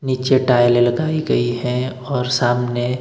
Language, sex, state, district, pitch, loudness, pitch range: Hindi, male, Himachal Pradesh, Shimla, 125 Hz, -18 LUFS, 120-130 Hz